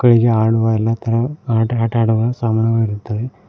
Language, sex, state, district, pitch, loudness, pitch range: Kannada, male, Karnataka, Koppal, 115 Hz, -17 LUFS, 115-120 Hz